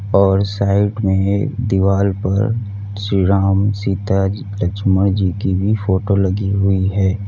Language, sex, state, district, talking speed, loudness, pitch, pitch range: Hindi, male, Uttar Pradesh, Lalitpur, 150 wpm, -17 LUFS, 100 Hz, 95-100 Hz